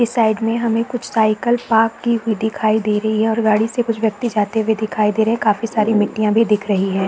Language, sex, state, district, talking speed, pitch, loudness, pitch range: Hindi, female, Chhattisgarh, Raigarh, 265 wpm, 220 Hz, -17 LUFS, 215-230 Hz